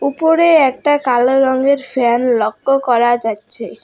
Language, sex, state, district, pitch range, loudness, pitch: Bengali, female, West Bengal, Alipurduar, 240-280 Hz, -14 LUFS, 265 Hz